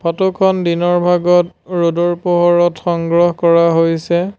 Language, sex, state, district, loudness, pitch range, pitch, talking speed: Assamese, male, Assam, Sonitpur, -14 LUFS, 170-175 Hz, 175 Hz, 125 wpm